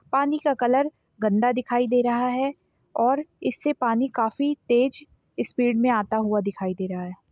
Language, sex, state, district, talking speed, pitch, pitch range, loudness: Hindi, female, Bihar, Araria, 165 wpm, 245 Hz, 220-275 Hz, -24 LUFS